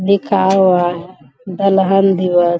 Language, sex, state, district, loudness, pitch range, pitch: Hindi, female, Bihar, Bhagalpur, -13 LUFS, 175-195 Hz, 185 Hz